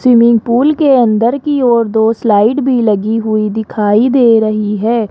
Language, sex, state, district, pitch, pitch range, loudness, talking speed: Hindi, male, Rajasthan, Jaipur, 230 Hz, 215-245 Hz, -11 LUFS, 175 wpm